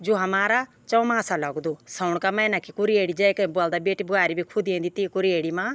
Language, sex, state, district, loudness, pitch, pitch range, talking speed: Garhwali, female, Uttarakhand, Tehri Garhwal, -23 LUFS, 190 Hz, 175-205 Hz, 190 wpm